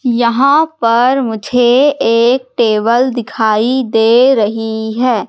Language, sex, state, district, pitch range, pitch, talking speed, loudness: Hindi, female, Madhya Pradesh, Katni, 225-255 Hz, 240 Hz, 100 wpm, -12 LUFS